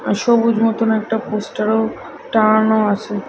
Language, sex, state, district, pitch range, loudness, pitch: Bengali, female, Odisha, Khordha, 210-225 Hz, -17 LUFS, 220 Hz